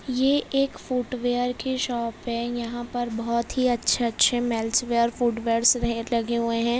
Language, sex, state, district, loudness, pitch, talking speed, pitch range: Hindi, female, Maharashtra, Pune, -24 LUFS, 240 Hz, 150 wpm, 235-250 Hz